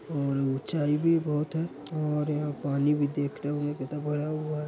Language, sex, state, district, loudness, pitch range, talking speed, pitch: Hindi, male, Uttar Pradesh, Hamirpur, -29 LUFS, 145-150 Hz, 180 wpm, 150 Hz